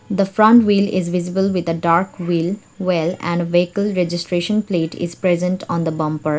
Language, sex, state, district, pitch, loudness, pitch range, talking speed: English, female, Sikkim, Gangtok, 180 Hz, -18 LUFS, 170-195 Hz, 190 wpm